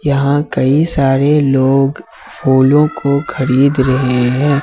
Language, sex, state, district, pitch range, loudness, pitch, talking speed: Hindi, male, Jharkhand, Ranchi, 130-145 Hz, -13 LUFS, 135 Hz, 115 wpm